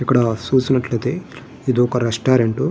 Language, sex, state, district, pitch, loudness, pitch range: Telugu, male, Andhra Pradesh, Guntur, 125 Hz, -18 LUFS, 120-130 Hz